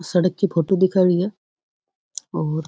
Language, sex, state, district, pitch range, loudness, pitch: Rajasthani, female, Rajasthan, Churu, 175-190 Hz, -20 LUFS, 180 Hz